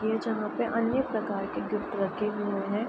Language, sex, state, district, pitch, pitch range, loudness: Hindi, female, Uttar Pradesh, Ghazipur, 220 Hz, 205-230 Hz, -30 LUFS